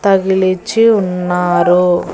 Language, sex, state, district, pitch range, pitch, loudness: Telugu, female, Andhra Pradesh, Annamaya, 180-195 Hz, 185 Hz, -13 LUFS